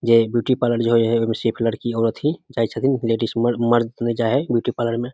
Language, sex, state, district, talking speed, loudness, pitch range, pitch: Maithili, male, Bihar, Samastipur, 255 wpm, -20 LUFS, 115-120 Hz, 115 Hz